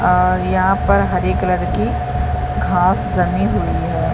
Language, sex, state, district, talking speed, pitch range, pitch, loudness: Hindi, female, Chhattisgarh, Balrampur, 160 wpm, 65-90 Hz, 75 Hz, -17 LUFS